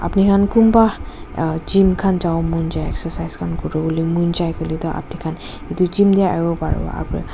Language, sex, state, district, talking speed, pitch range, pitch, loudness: Nagamese, female, Nagaland, Dimapur, 195 wpm, 160-190 Hz, 165 Hz, -18 LUFS